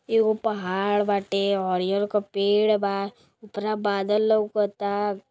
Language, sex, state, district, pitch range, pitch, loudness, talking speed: Hindi, female, Uttar Pradesh, Gorakhpur, 200-210 Hz, 205 Hz, -24 LUFS, 115 wpm